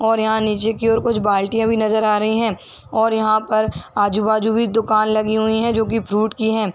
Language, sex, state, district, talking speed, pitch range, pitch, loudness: Hindi, female, Chhattisgarh, Bilaspur, 240 wpm, 215-225 Hz, 220 Hz, -18 LUFS